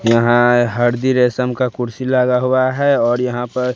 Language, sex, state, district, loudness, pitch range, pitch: Hindi, male, Bihar, West Champaran, -15 LUFS, 120-130 Hz, 125 Hz